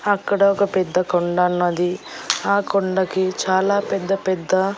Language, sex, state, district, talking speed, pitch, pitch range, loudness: Telugu, female, Andhra Pradesh, Annamaya, 115 wpm, 190 Hz, 180-200 Hz, -20 LUFS